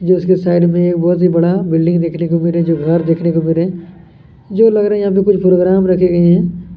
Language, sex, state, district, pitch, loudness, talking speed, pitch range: Hindi, male, Chhattisgarh, Kabirdham, 175 Hz, -13 LUFS, 265 wpm, 170-185 Hz